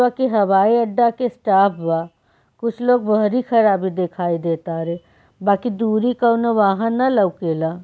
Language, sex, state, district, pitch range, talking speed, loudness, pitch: Bhojpuri, female, Bihar, Saran, 170-235 Hz, 155 wpm, -18 LUFS, 205 Hz